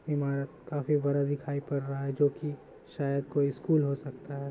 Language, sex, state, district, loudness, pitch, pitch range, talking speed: Hindi, male, Bihar, Samastipur, -31 LUFS, 140 Hz, 140-145 Hz, 185 wpm